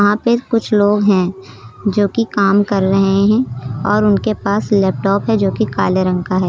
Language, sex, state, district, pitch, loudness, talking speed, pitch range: Hindi, female, Uttar Pradesh, Lucknow, 200 Hz, -15 LUFS, 205 wpm, 185-210 Hz